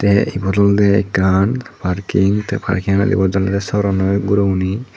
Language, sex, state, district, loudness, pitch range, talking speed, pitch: Chakma, male, Tripura, Dhalai, -16 LUFS, 95-100 Hz, 135 wpm, 100 Hz